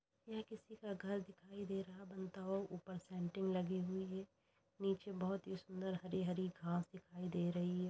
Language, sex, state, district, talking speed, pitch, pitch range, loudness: Hindi, female, Uttar Pradesh, Jalaun, 195 wpm, 190 Hz, 180-195 Hz, -45 LUFS